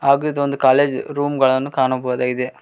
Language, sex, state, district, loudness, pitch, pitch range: Kannada, male, Karnataka, Koppal, -18 LUFS, 135 Hz, 130-140 Hz